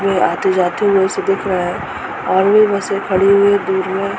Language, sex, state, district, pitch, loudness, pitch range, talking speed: Hindi, female, Uttar Pradesh, Muzaffarnagar, 195 Hz, -15 LUFS, 190-200 Hz, 215 wpm